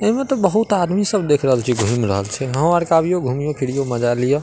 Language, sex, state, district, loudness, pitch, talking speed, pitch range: Maithili, male, Bihar, Madhepura, -18 LUFS, 145 Hz, 245 wpm, 125-185 Hz